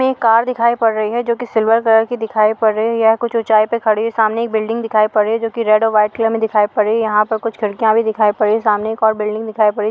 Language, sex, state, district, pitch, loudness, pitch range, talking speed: Hindi, female, Bihar, Muzaffarpur, 220 Hz, -15 LUFS, 215-230 Hz, 340 wpm